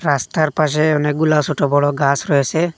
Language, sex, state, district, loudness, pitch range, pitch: Bengali, male, Assam, Hailakandi, -16 LUFS, 145-155 Hz, 150 Hz